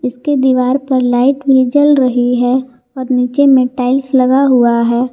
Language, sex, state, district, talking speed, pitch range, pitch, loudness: Hindi, female, Jharkhand, Garhwa, 175 wpm, 250-270 Hz, 255 Hz, -12 LUFS